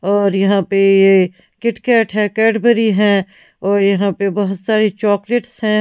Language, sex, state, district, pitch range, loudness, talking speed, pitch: Hindi, female, Punjab, Pathankot, 195-220 Hz, -15 LUFS, 155 wpm, 205 Hz